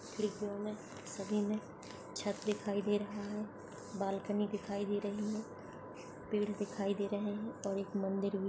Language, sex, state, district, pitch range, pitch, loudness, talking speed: Hindi, female, Maharashtra, Solapur, 200-210 Hz, 205 Hz, -39 LUFS, 160 wpm